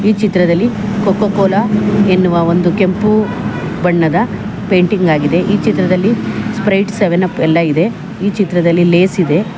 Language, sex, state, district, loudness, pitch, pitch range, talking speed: Kannada, female, Karnataka, Bangalore, -13 LUFS, 190 Hz, 175-205 Hz, 130 wpm